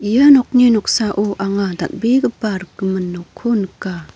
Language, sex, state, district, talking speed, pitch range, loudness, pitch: Garo, female, Meghalaya, North Garo Hills, 115 wpm, 190-235 Hz, -16 LUFS, 205 Hz